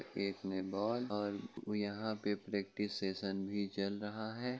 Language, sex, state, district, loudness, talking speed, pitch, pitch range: Hindi, male, Uttar Pradesh, Jyotiba Phule Nagar, -40 LUFS, 155 wpm, 100 Hz, 100-105 Hz